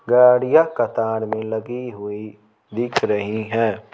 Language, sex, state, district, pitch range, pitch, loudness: Hindi, male, Bihar, Patna, 110-120 Hz, 110 Hz, -20 LUFS